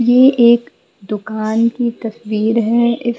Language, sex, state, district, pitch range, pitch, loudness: Hindi, female, Bihar, Patna, 220-240 Hz, 230 Hz, -15 LUFS